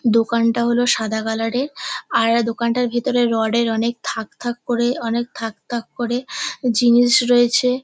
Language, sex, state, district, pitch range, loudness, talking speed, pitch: Bengali, female, West Bengal, North 24 Parganas, 230-245 Hz, -19 LUFS, 140 wpm, 235 Hz